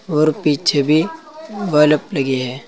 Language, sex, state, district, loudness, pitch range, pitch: Hindi, male, Uttar Pradesh, Saharanpur, -17 LUFS, 140-195 Hz, 150 Hz